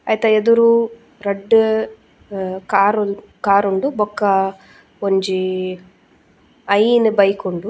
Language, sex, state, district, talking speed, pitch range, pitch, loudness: Tulu, female, Karnataka, Dakshina Kannada, 85 wpm, 195-220 Hz, 200 Hz, -17 LUFS